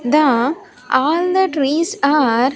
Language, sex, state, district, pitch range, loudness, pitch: English, female, Andhra Pradesh, Sri Satya Sai, 275-335 Hz, -16 LUFS, 300 Hz